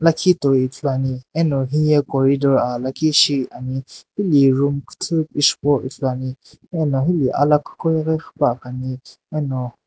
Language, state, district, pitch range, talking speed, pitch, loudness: Sumi, Nagaland, Dimapur, 130-155 Hz, 120 wpm, 140 Hz, -19 LUFS